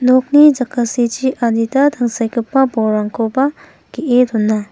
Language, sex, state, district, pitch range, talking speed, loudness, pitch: Garo, female, Meghalaya, West Garo Hills, 225-265 Hz, 90 wpm, -15 LUFS, 245 Hz